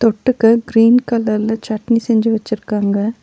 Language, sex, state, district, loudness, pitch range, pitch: Tamil, female, Tamil Nadu, Nilgiris, -15 LUFS, 220-230 Hz, 225 Hz